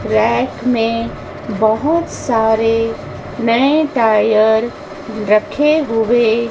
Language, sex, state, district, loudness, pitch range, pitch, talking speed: Hindi, female, Madhya Pradesh, Dhar, -15 LUFS, 220-240 Hz, 225 Hz, 75 wpm